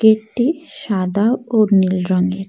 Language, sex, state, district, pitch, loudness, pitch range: Bengali, female, West Bengal, Alipurduar, 210 Hz, -17 LUFS, 185-225 Hz